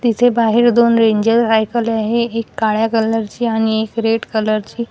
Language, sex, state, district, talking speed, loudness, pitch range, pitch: Marathi, female, Maharashtra, Washim, 185 wpm, -15 LUFS, 220-235 Hz, 225 Hz